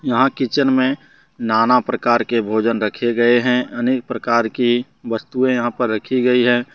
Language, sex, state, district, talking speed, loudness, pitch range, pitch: Hindi, male, Jharkhand, Deoghar, 180 wpm, -18 LUFS, 115-125 Hz, 120 Hz